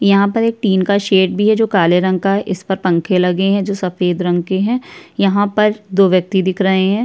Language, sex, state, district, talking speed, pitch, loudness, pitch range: Hindi, female, Chhattisgarh, Sukma, 265 wpm, 195 Hz, -15 LUFS, 185-200 Hz